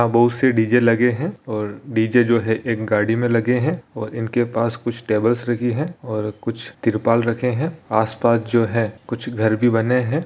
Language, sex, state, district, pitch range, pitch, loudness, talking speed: Hindi, male, Bihar, Araria, 110-125 Hz, 115 Hz, -20 LUFS, 200 wpm